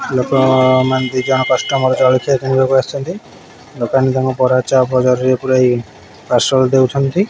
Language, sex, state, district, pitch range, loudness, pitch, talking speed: Odia, male, Odisha, Khordha, 130-135 Hz, -14 LUFS, 130 Hz, 130 wpm